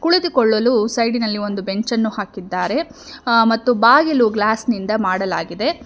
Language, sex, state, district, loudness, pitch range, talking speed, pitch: Kannada, female, Karnataka, Bangalore, -17 LUFS, 210-250 Hz, 125 wpm, 225 Hz